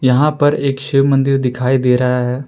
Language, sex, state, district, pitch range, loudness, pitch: Hindi, male, Jharkhand, Palamu, 125-140 Hz, -14 LUFS, 135 Hz